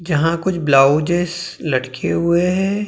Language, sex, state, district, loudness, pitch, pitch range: Hindi, male, Maharashtra, Gondia, -17 LUFS, 170 Hz, 150-180 Hz